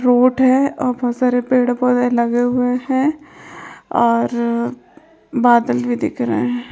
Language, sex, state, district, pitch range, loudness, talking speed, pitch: Hindi, female, Chhattisgarh, Raigarh, 235-255 Hz, -17 LUFS, 145 wpm, 245 Hz